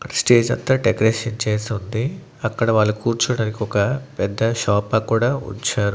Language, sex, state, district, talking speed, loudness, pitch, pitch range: Telugu, male, Andhra Pradesh, Annamaya, 130 wpm, -20 LUFS, 115 Hz, 105-120 Hz